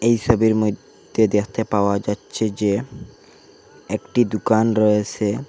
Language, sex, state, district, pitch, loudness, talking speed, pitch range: Bengali, male, Assam, Hailakandi, 110 Hz, -20 LUFS, 110 wpm, 105-115 Hz